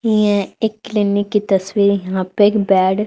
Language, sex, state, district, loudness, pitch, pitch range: Hindi, female, Haryana, Charkhi Dadri, -16 LUFS, 205 Hz, 195-210 Hz